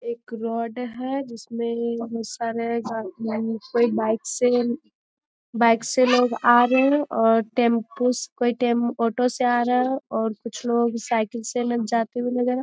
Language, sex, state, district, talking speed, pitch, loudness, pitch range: Hindi, female, Bihar, Jamui, 165 wpm, 235 Hz, -23 LUFS, 230-245 Hz